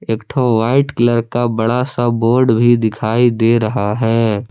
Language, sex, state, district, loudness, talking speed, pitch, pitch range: Hindi, male, Jharkhand, Palamu, -15 LUFS, 175 wpm, 115 Hz, 115-120 Hz